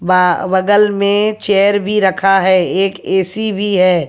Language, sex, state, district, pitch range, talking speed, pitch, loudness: Hindi, female, Haryana, Jhajjar, 185-205 Hz, 145 wpm, 195 Hz, -13 LUFS